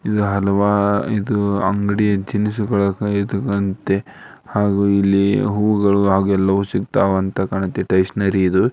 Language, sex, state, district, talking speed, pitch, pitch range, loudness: Kannada, male, Karnataka, Dharwad, 110 wpm, 100 Hz, 95-105 Hz, -18 LUFS